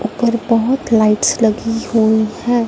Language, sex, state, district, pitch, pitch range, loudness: Hindi, female, Punjab, Fazilka, 225 Hz, 220-235 Hz, -15 LUFS